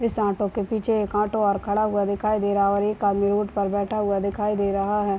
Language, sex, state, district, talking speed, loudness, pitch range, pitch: Hindi, male, Bihar, Muzaffarpur, 275 wpm, -23 LUFS, 200-210 Hz, 205 Hz